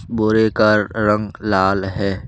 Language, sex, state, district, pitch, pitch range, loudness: Hindi, male, Jharkhand, Deoghar, 105 Hz, 100-110 Hz, -17 LUFS